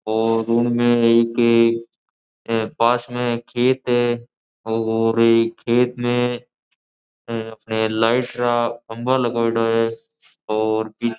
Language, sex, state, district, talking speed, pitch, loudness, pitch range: Marwari, male, Rajasthan, Nagaur, 115 wpm, 115 Hz, -20 LUFS, 115-120 Hz